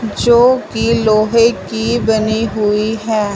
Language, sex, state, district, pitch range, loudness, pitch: Hindi, male, Punjab, Fazilka, 215-230 Hz, -14 LUFS, 220 Hz